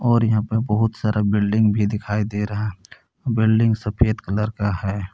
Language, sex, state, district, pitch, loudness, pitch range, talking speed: Hindi, male, Jharkhand, Palamu, 105 Hz, -21 LUFS, 105-110 Hz, 175 wpm